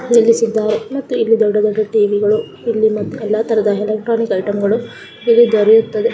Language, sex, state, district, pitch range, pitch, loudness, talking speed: Kannada, female, Karnataka, Gulbarga, 215-230 Hz, 220 Hz, -15 LUFS, 165 wpm